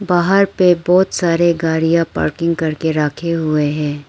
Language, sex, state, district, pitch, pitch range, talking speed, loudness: Hindi, female, Arunachal Pradesh, Lower Dibang Valley, 165 Hz, 155-175 Hz, 145 wpm, -15 LUFS